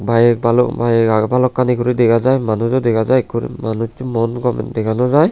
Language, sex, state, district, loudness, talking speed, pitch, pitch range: Chakma, male, Tripura, Unakoti, -16 LUFS, 215 wpm, 120 Hz, 115-125 Hz